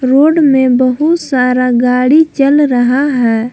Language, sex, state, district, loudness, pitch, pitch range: Hindi, female, Jharkhand, Palamu, -10 LUFS, 260 Hz, 250-290 Hz